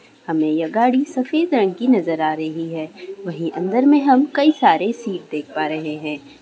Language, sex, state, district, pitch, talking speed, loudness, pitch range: Hindi, female, Bihar, Saran, 190 Hz, 205 wpm, -19 LUFS, 155-255 Hz